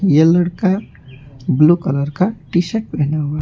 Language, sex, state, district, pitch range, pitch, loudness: Hindi, male, West Bengal, Alipurduar, 145-185 Hz, 160 Hz, -16 LUFS